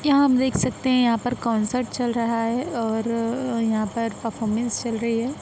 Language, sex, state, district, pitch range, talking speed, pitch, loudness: Hindi, female, Bihar, Araria, 230-250 Hz, 200 wpm, 230 Hz, -23 LUFS